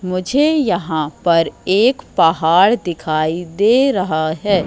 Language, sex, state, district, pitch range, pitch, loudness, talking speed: Hindi, female, Madhya Pradesh, Katni, 160-215 Hz, 180 Hz, -16 LUFS, 115 wpm